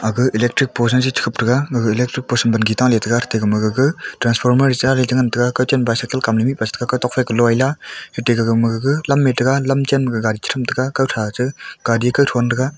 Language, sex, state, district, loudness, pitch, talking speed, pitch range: Wancho, male, Arunachal Pradesh, Longding, -17 LUFS, 125 Hz, 205 wpm, 115-130 Hz